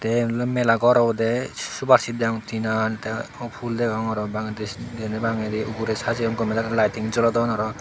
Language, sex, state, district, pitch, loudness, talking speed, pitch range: Chakma, male, Tripura, Dhalai, 115 Hz, -23 LUFS, 190 wpm, 110-115 Hz